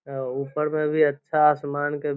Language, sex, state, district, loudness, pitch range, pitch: Magahi, male, Bihar, Lakhisarai, -23 LUFS, 140-150 Hz, 145 Hz